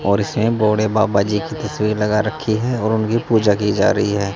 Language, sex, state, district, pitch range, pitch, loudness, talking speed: Hindi, male, Haryana, Jhajjar, 105-110 Hz, 110 Hz, -18 LUFS, 235 wpm